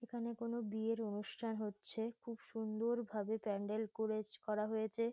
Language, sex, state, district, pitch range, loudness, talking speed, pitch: Bengali, female, West Bengal, Kolkata, 215-230 Hz, -42 LUFS, 130 wpm, 220 Hz